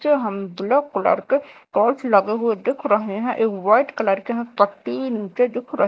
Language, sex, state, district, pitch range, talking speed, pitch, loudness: Hindi, female, Madhya Pradesh, Dhar, 200-250 Hz, 215 wpm, 225 Hz, -21 LUFS